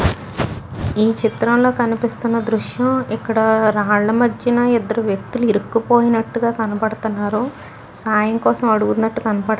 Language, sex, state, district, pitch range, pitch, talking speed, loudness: Telugu, female, Telangana, Nalgonda, 220-240 Hz, 225 Hz, 95 wpm, -18 LUFS